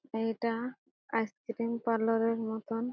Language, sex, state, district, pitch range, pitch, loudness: Bengali, female, West Bengal, Jhargram, 225-235 Hz, 230 Hz, -33 LUFS